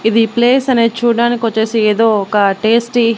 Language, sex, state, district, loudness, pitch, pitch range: Telugu, female, Andhra Pradesh, Annamaya, -13 LUFS, 230 Hz, 220-235 Hz